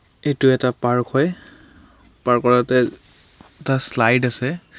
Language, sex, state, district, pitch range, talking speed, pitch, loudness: Assamese, male, Assam, Kamrup Metropolitan, 120-135 Hz, 125 wpm, 125 Hz, -17 LUFS